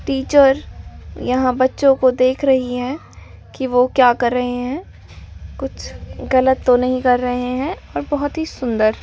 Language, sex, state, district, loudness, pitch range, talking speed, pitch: Hindi, female, Delhi, New Delhi, -17 LUFS, 250-270 Hz, 160 wpm, 255 Hz